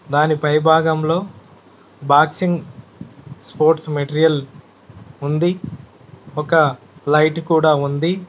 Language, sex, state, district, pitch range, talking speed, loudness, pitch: Telugu, male, Telangana, Mahabubabad, 140-160 Hz, 80 wpm, -17 LUFS, 150 Hz